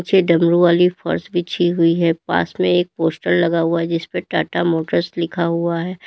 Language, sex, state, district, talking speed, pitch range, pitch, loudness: Hindi, female, Uttar Pradesh, Lalitpur, 200 wpm, 170-175 Hz, 170 Hz, -18 LUFS